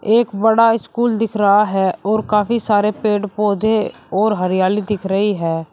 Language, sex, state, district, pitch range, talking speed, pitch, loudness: Hindi, male, Uttar Pradesh, Shamli, 200-220 Hz, 170 wpm, 210 Hz, -16 LUFS